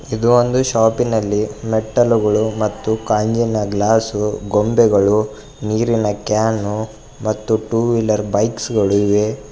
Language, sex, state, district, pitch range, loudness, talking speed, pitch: Kannada, male, Karnataka, Bidar, 105-115 Hz, -17 LUFS, 105 wpm, 110 Hz